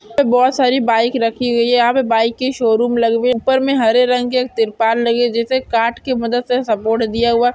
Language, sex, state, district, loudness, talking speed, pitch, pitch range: Hindi, female, Maharashtra, Solapur, -15 LUFS, 240 wpm, 240 Hz, 230-255 Hz